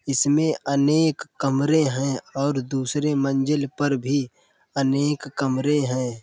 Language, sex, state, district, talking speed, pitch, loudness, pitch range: Hindi, male, Uttar Pradesh, Budaun, 115 wpm, 140 Hz, -23 LUFS, 135-145 Hz